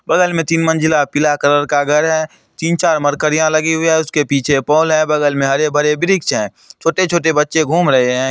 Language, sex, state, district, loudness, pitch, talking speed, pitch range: Hindi, male, Bihar, Supaul, -14 LUFS, 155 Hz, 225 wpm, 145-160 Hz